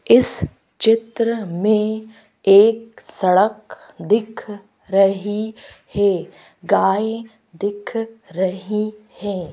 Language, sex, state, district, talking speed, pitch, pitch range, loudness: Hindi, female, Madhya Pradesh, Bhopal, 75 wpm, 215 Hz, 195-225 Hz, -19 LUFS